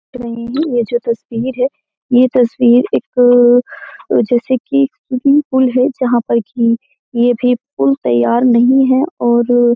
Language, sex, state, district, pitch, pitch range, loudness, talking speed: Hindi, female, Uttar Pradesh, Jyotiba Phule Nagar, 245 Hz, 235-260 Hz, -13 LUFS, 160 wpm